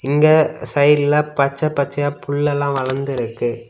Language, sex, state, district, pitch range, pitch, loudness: Tamil, male, Tamil Nadu, Kanyakumari, 140-145 Hz, 145 Hz, -17 LUFS